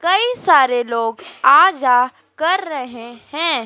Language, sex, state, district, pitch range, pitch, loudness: Hindi, female, Madhya Pradesh, Dhar, 240-355 Hz, 265 Hz, -15 LUFS